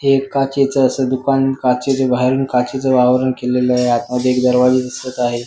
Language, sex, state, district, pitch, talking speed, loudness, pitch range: Marathi, male, Maharashtra, Sindhudurg, 130 Hz, 165 wpm, -16 LUFS, 125-135 Hz